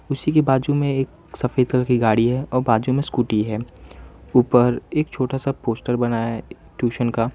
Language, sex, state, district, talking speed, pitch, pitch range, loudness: Hindi, male, Gujarat, Valsad, 205 wpm, 125 Hz, 115-135 Hz, -20 LUFS